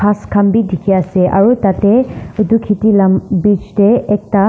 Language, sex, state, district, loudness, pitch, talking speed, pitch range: Nagamese, female, Nagaland, Dimapur, -12 LUFS, 205 Hz, 175 wpm, 195-210 Hz